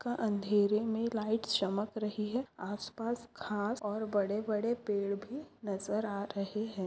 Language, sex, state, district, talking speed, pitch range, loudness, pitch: Hindi, female, Maharashtra, Aurangabad, 155 wpm, 205-225 Hz, -35 LUFS, 210 Hz